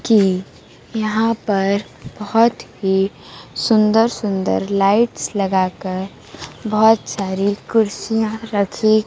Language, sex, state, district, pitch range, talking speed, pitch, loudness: Hindi, female, Bihar, Kaimur, 195-220 Hz, 95 wpm, 210 Hz, -18 LUFS